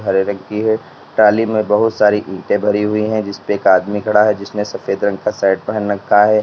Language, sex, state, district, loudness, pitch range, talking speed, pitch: Hindi, male, Uttar Pradesh, Lalitpur, -16 LUFS, 100-105 Hz, 240 wpm, 105 Hz